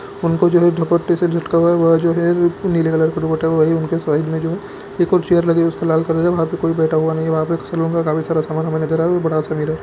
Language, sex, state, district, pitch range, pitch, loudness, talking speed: Hindi, male, Bihar, Lakhisarai, 160-170 Hz, 165 Hz, -17 LUFS, 230 wpm